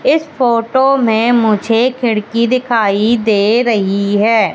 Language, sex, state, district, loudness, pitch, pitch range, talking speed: Hindi, female, Madhya Pradesh, Katni, -13 LUFS, 230 Hz, 215-245 Hz, 120 wpm